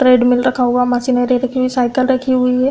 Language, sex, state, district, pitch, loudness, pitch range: Hindi, female, Uttar Pradesh, Budaun, 250 Hz, -14 LUFS, 250-255 Hz